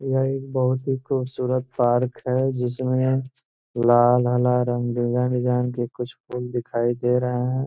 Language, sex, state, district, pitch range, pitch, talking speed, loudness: Hindi, male, Bihar, Gopalganj, 120-130 Hz, 125 Hz, 155 wpm, -23 LUFS